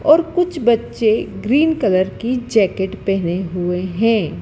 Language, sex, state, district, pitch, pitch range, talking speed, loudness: Hindi, female, Madhya Pradesh, Dhar, 215 Hz, 185-255 Hz, 135 wpm, -17 LUFS